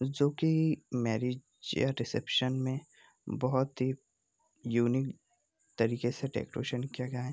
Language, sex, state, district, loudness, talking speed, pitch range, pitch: Hindi, male, Bihar, Sitamarhi, -33 LUFS, 125 wpm, 125-145 Hz, 130 Hz